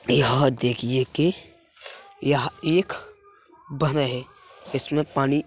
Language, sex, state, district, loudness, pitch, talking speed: Hindi, male, Uttar Pradesh, Hamirpur, -23 LUFS, 155 Hz, 110 wpm